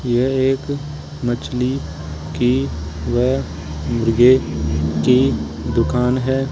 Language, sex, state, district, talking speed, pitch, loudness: Hindi, male, Rajasthan, Jaipur, 85 wpm, 120 Hz, -19 LUFS